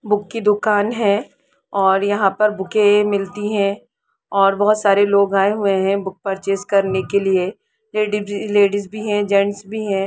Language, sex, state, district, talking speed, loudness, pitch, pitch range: Hindi, female, Jharkhand, Jamtara, 175 wpm, -18 LUFS, 205 Hz, 195-210 Hz